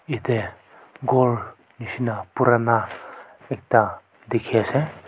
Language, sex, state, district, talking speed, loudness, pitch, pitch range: Nagamese, male, Nagaland, Kohima, 85 wpm, -22 LUFS, 120 Hz, 110-125 Hz